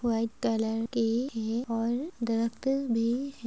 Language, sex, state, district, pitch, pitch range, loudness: Hindi, female, Andhra Pradesh, Srikakulam, 230 Hz, 225-245 Hz, -30 LUFS